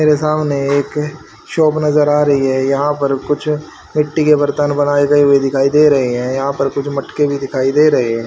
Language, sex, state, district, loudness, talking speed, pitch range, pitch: Hindi, male, Haryana, Rohtak, -14 LUFS, 220 wpm, 135-150 Hz, 145 Hz